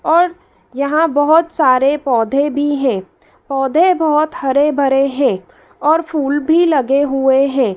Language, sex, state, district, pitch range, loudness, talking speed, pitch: Hindi, female, Madhya Pradesh, Dhar, 270-310 Hz, -14 LUFS, 130 wpm, 285 Hz